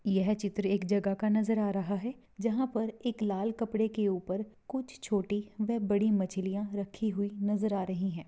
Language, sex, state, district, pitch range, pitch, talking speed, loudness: Hindi, female, Bihar, Darbhanga, 200-220 Hz, 205 Hz, 195 wpm, -32 LUFS